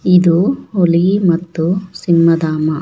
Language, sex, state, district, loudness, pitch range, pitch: Kannada, female, Karnataka, Shimoga, -14 LUFS, 165-180 Hz, 170 Hz